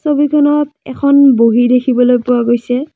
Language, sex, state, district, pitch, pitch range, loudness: Assamese, female, Assam, Kamrup Metropolitan, 260 Hz, 245-290 Hz, -11 LUFS